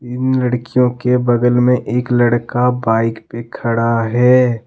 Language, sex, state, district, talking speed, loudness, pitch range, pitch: Hindi, male, Jharkhand, Deoghar, 140 wpm, -15 LUFS, 115-125 Hz, 120 Hz